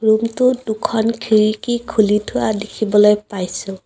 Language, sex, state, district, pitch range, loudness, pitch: Assamese, female, Assam, Kamrup Metropolitan, 210-230 Hz, -17 LUFS, 220 Hz